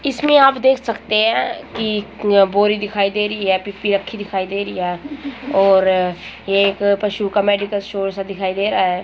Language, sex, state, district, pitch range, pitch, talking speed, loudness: Hindi, female, Haryana, Jhajjar, 195-215 Hz, 205 Hz, 190 wpm, -17 LUFS